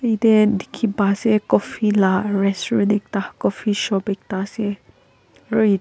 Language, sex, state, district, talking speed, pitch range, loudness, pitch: Nagamese, female, Nagaland, Kohima, 125 wpm, 200-220 Hz, -20 LUFS, 205 Hz